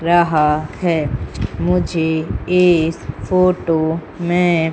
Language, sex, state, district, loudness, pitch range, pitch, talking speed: Hindi, female, Madhya Pradesh, Umaria, -17 LUFS, 150-175 Hz, 160 Hz, 75 wpm